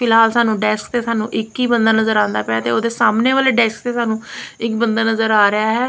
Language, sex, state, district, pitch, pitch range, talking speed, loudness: Punjabi, female, Punjab, Kapurthala, 225 Hz, 215-235 Hz, 245 wpm, -16 LUFS